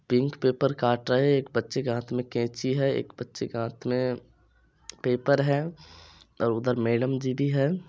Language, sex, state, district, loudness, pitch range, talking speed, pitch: Maithili, male, Bihar, Supaul, -27 LUFS, 120-135 Hz, 185 wpm, 130 Hz